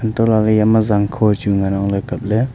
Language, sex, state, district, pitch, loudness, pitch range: Wancho, male, Arunachal Pradesh, Longding, 110 Hz, -16 LUFS, 100-110 Hz